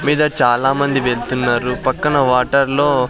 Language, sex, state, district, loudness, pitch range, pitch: Telugu, male, Andhra Pradesh, Sri Satya Sai, -16 LUFS, 125-140 Hz, 130 Hz